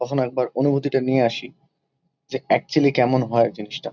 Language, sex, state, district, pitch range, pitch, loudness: Bengali, male, West Bengal, Kolkata, 125-140 Hz, 130 Hz, -21 LUFS